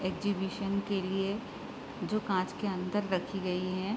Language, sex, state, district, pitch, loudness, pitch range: Hindi, female, Bihar, Gopalganj, 195 Hz, -34 LUFS, 185-200 Hz